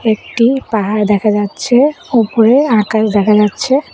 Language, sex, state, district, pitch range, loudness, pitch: Bengali, female, West Bengal, Cooch Behar, 210-255 Hz, -12 LUFS, 220 Hz